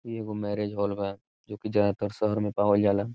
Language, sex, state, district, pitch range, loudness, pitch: Bhojpuri, male, Bihar, Saran, 100-105 Hz, -28 LUFS, 105 Hz